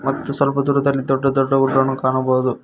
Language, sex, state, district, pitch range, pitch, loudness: Kannada, male, Karnataka, Koppal, 135-140 Hz, 135 Hz, -18 LUFS